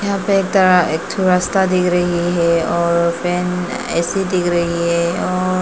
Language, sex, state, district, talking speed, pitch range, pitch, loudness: Hindi, female, Arunachal Pradesh, Papum Pare, 140 wpm, 170-185 Hz, 180 Hz, -16 LUFS